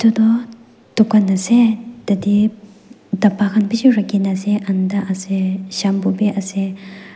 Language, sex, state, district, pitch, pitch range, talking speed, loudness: Nagamese, female, Nagaland, Dimapur, 205 Hz, 195-220 Hz, 115 wpm, -17 LUFS